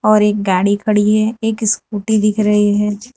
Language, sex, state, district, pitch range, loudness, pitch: Hindi, female, Gujarat, Valsad, 205-215 Hz, -15 LUFS, 210 Hz